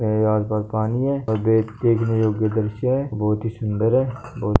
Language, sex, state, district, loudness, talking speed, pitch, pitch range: Marwari, male, Rajasthan, Nagaur, -21 LUFS, 220 wpm, 110 Hz, 110-120 Hz